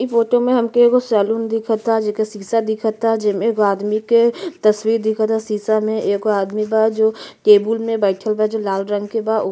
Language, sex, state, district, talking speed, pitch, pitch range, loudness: Bhojpuri, female, Uttar Pradesh, Ghazipur, 195 wpm, 220 Hz, 210-225 Hz, -17 LUFS